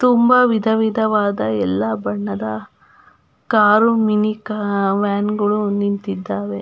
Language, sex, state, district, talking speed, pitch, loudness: Kannada, female, Karnataka, Belgaum, 80 wpm, 205 Hz, -17 LUFS